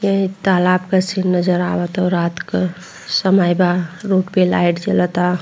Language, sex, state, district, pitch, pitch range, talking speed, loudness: Hindi, female, Bihar, Vaishali, 180 Hz, 175-190 Hz, 155 wpm, -17 LUFS